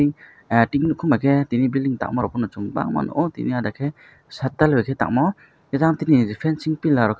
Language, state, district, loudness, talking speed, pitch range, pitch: Kokborok, Tripura, West Tripura, -21 LUFS, 150 wpm, 120-155 Hz, 135 Hz